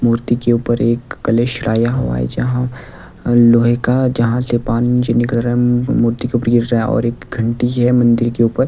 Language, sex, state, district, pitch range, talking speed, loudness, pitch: Hindi, male, Delhi, New Delhi, 115-120 Hz, 215 wpm, -15 LUFS, 120 Hz